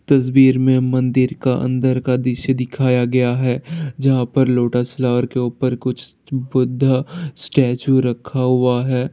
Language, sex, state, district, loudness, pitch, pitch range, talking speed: Hindi, male, Bihar, Jahanabad, -17 LUFS, 130 Hz, 125-130 Hz, 145 wpm